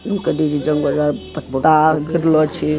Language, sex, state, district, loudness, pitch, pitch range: Hindi, male, Bihar, Araria, -17 LUFS, 155 Hz, 150-160 Hz